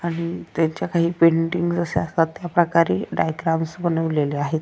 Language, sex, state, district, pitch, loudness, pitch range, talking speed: Marathi, female, Maharashtra, Dhule, 165 Hz, -21 LUFS, 160-170 Hz, 145 wpm